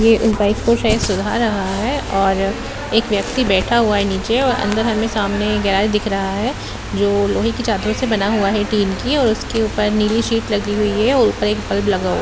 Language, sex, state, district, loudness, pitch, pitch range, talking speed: Hindi, female, Bihar, Gopalganj, -17 LUFS, 210 Hz, 195-225 Hz, 225 wpm